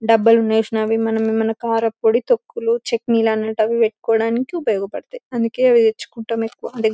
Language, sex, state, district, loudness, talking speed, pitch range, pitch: Telugu, female, Telangana, Karimnagar, -18 LUFS, 105 wpm, 225-240 Hz, 225 Hz